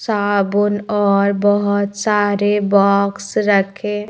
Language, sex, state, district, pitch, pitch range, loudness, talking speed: Hindi, female, Madhya Pradesh, Bhopal, 205 Hz, 200-205 Hz, -16 LUFS, 90 wpm